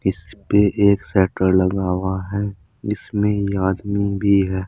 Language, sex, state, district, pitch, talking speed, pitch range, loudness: Hindi, male, Uttar Pradesh, Saharanpur, 100 Hz, 140 wpm, 95-100 Hz, -19 LUFS